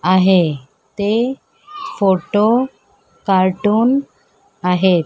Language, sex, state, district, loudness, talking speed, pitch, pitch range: Marathi, female, Maharashtra, Mumbai Suburban, -16 LUFS, 60 wpm, 200 Hz, 185-235 Hz